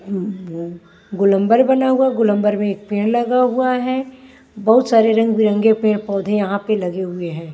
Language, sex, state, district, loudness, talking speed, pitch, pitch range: Hindi, female, Maharashtra, Washim, -17 LUFS, 165 wpm, 210 Hz, 195-240 Hz